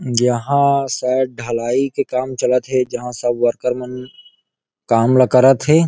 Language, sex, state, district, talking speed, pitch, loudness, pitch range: Chhattisgarhi, male, Chhattisgarh, Rajnandgaon, 155 wpm, 125 Hz, -17 LUFS, 125-135 Hz